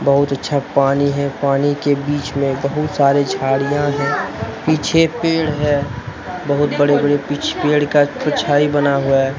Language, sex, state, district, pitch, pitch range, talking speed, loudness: Hindi, male, Jharkhand, Deoghar, 145 Hz, 140-145 Hz, 160 wpm, -17 LUFS